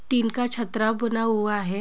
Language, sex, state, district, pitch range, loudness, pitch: Hindi, female, Chhattisgarh, Bilaspur, 215-235 Hz, -24 LUFS, 225 Hz